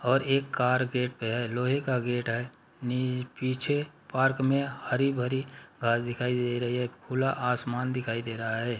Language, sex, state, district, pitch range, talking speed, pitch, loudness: Hindi, male, Uttar Pradesh, Muzaffarnagar, 120-130 Hz, 185 wpm, 125 Hz, -29 LUFS